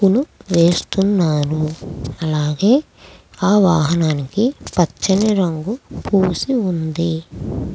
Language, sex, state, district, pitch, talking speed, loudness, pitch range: Telugu, female, Andhra Pradesh, Krishna, 175 Hz, 60 wpm, -18 LUFS, 155-200 Hz